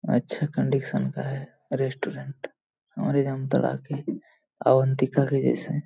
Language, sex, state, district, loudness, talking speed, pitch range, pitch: Hindi, male, Jharkhand, Jamtara, -26 LUFS, 125 wpm, 130-140 Hz, 135 Hz